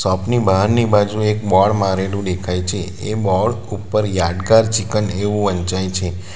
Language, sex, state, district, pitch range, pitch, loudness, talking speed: Gujarati, male, Gujarat, Valsad, 95-105 Hz, 100 Hz, -17 LUFS, 160 wpm